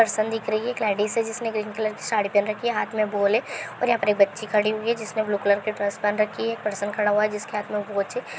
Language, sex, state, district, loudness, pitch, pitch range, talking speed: Hindi, female, Bihar, Saharsa, -24 LUFS, 215 Hz, 205-220 Hz, 320 wpm